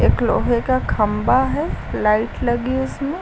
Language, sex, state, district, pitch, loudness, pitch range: Hindi, female, Uttar Pradesh, Lucknow, 245 Hz, -19 LUFS, 240-260 Hz